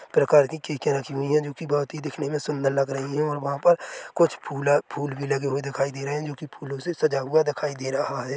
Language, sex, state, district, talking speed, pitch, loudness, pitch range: Hindi, male, Chhattisgarh, Korba, 280 wpm, 145 Hz, -25 LUFS, 140-150 Hz